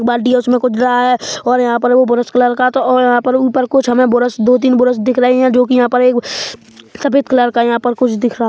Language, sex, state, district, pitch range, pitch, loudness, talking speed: Hindi, male, Chhattisgarh, Bilaspur, 245-255 Hz, 250 Hz, -12 LUFS, 290 wpm